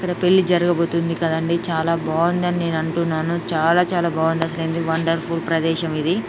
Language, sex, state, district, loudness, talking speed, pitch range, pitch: Telugu, female, Telangana, Nalgonda, -20 LUFS, 150 wpm, 165-175 Hz, 165 Hz